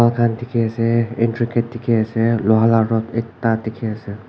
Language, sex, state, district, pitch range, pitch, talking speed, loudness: Nagamese, male, Nagaland, Kohima, 110-115 Hz, 115 Hz, 195 wpm, -19 LUFS